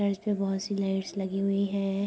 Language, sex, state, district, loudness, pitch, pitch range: Hindi, female, Uttar Pradesh, Budaun, -29 LUFS, 195 Hz, 195-200 Hz